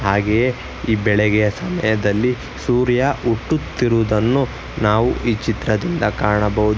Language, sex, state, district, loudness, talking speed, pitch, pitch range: Kannada, male, Karnataka, Bangalore, -18 LUFS, 90 wpm, 110 Hz, 105-125 Hz